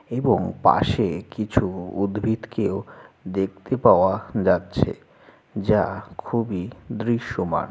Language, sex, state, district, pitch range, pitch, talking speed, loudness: Bengali, male, West Bengal, Jalpaiguri, 95-115 Hz, 105 Hz, 85 wpm, -23 LUFS